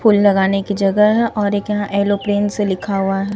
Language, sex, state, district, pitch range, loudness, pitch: Hindi, female, Bihar, Katihar, 195-205 Hz, -16 LUFS, 205 Hz